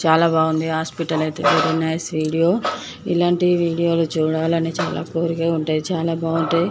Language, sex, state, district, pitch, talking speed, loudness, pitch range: Telugu, female, Andhra Pradesh, Chittoor, 165 Hz, 135 wpm, -20 LUFS, 160-170 Hz